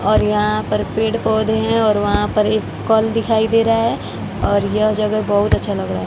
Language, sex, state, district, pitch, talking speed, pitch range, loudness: Hindi, female, Bihar, West Champaran, 215 Hz, 225 wpm, 200-220 Hz, -17 LUFS